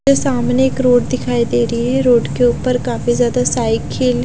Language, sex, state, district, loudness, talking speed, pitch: Hindi, female, Bihar, Katihar, -15 LUFS, 210 wpm, 240 Hz